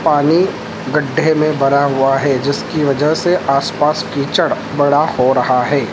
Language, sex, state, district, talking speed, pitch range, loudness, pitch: Hindi, male, Madhya Pradesh, Dhar, 150 wpm, 135-155 Hz, -15 LUFS, 145 Hz